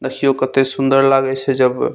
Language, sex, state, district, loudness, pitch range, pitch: Maithili, male, Bihar, Saharsa, -15 LUFS, 130-135 Hz, 135 Hz